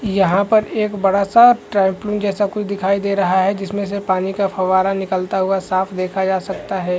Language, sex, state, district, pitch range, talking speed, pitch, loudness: Hindi, male, Chhattisgarh, Rajnandgaon, 190-200 Hz, 205 wpm, 195 Hz, -17 LUFS